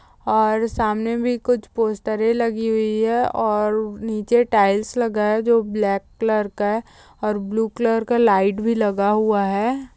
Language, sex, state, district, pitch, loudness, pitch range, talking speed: Hindi, female, Uttar Pradesh, Jyotiba Phule Nagar, 220 Hz, -20 LUFS, 210-230 Hz, 155 wpm